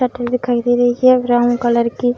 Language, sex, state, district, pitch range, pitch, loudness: Hindi, female, Bihar, Supaul, 240-250 Hz, 245 Hz, -15 LUFS